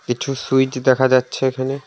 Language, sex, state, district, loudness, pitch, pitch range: Bengali, male, West Bengal, Alipurduar, -18 LUFS, 130 Hz, 130-135 Hz